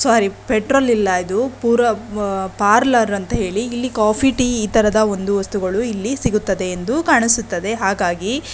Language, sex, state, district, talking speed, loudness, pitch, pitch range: Kannada, female, Karnataka, Shimoga, 155 wpm, -17 LUFS, 215 Hz, 200-240 Hz